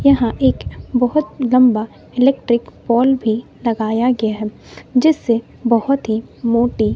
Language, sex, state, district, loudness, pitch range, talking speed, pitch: Hindi, female, Bihar, West Champaran, -17 LUFS, 225-260 Hz, 120 wpm, 240 Hz